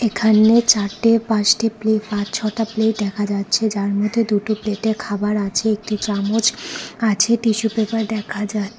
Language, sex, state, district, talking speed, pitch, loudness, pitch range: Bengali, female, Tripura, West Tripura, 150 wpm, 215 Hz, -19 LUFS, 205-225 Hz